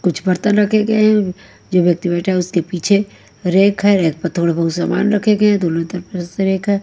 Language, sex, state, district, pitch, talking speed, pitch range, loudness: Hindi, female, Haryana, Charkhi Dadri, 185 Hz, 235 wpm, 175-205 Hz, -16 LUFS